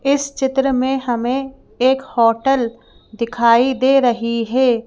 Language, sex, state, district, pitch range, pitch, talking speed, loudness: Hindi, female, Madhya Pradesh, Bhopal, 235-270 Hz, 255 Hz, 125 wpm, -17 LUFS